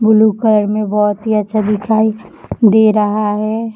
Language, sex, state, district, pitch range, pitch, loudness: Hindi, female, Jharkhand, Jamtara, 210-220 Hz, 215 Hz, -13 LUFS